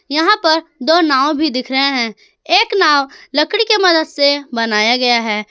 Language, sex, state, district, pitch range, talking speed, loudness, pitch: Hindi, female, Jharkhand, Ranchi, 255-335 Hz, 185 wpm, -14 LUFS, 290 Hz